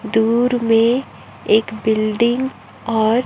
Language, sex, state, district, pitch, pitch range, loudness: Hindi, male, Chhattisgarh, Raipur, 225 Hz, 220-240 Hz, -17 LUFS